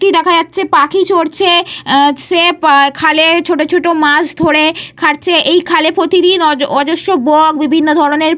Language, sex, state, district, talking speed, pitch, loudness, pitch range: Bengali, female, Jharkhand, Jamtara, 145 wpm, 320 Hz, -10 LUFS, 305-350 Hz